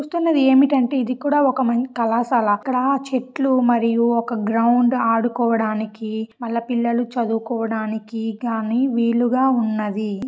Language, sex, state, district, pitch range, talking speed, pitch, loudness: Telugu, female, Andhra Pradesh, Srikakulam, 225-255 Hz, 115 wpm, 235 Hz, -20 LUFS